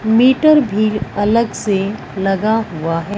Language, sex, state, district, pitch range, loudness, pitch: Hindi, female, Punjab, Fazilka, 195-230 Hz, -15 LUFS, 210 Hz